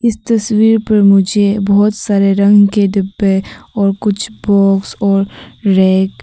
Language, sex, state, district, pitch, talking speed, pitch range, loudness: Hindi, female, Arunachal Pradesh, Papum Pare, 200 Hz, 145 wpm, 195-210 Hz, -12 LUFS